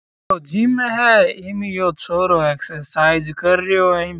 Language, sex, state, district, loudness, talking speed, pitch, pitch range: Marwari, male, Rajasthan, Churu, -17 LUFS, 130 wpm, 180 Hz, 170-200 Hz